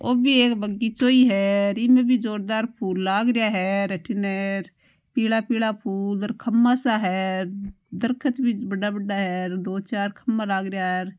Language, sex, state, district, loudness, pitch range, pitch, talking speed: Marwari, female, Rajasthan, Nagaur, -23 LUFS, 195-235 Hz, 205 Hz, 180 wpm